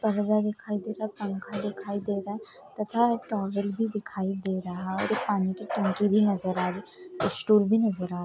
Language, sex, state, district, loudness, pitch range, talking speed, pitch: Hindi, female, Bihar, East Champaran, -28 LUFS, 195-215 Hz, 235 wpm, 205 Hz